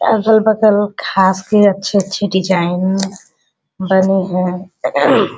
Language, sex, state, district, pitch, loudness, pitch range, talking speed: Hindi, female, Uttar Pradesh, Varanasi, 195 Hz, -14 LUFS, 185-205 Hz, 80 wpm